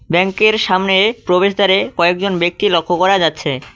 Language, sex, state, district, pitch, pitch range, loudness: Bengali, male, West Bengal, Cooch Behar, 185 Hz, 175-200 Hz, -14 LUFS